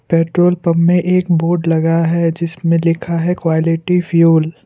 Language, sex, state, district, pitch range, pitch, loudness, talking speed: Hindi, male, Assam, Kamrup Metropolitan, 165-175 Hz, 170 Hz, -14 LUFS, 165 wpm